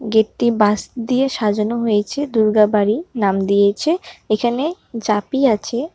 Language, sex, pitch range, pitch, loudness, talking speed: Bengali, male, 210-265 Hz, 225 Hz, -18 LUFS, 110 wpm